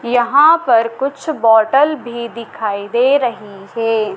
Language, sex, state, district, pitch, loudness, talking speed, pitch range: Hindi, female, Madhya Pradesh, Dhar, 235 Hz, -14 LUFS, 130 wpm, 220-275 Hz